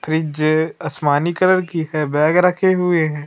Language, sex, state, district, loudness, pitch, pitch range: Hindi, female, Madhya Pradesh, Umaria, -17 LUFS, 160 Hz, 155-180 Hz